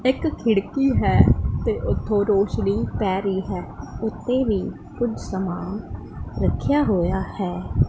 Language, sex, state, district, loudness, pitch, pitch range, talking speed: Punjabi, female, Punjab, Pathankot, -23 LUFS, 200 Hz, 190-240 Hz, 120 wpm